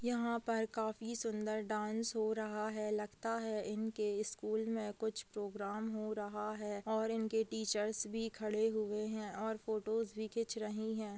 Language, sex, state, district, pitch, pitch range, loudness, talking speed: Hindi, female, Uttar Pradesh, Jyotiba Phule Nagar, 220 Hz, 210-225 Hz, -39 LUFS, 165 wpm